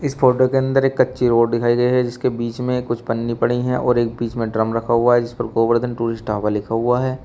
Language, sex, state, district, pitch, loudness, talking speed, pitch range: Hindi, male, Uttar Pradesh, Shamli, 120 Hz, -19 LUFS, 275 wpm, 115-125 Hz